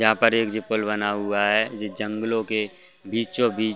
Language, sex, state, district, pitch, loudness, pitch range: Hindi, male, Chhattisgarh, Bastar, 110 Hz, -24 LUFS, 105-115 Hz